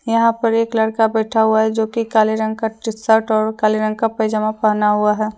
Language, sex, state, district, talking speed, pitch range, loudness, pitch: Hindi, female, Jharkhand, Deoghar, 235 wpm, 215-225 Hz, -17 LUFS, 220 Hz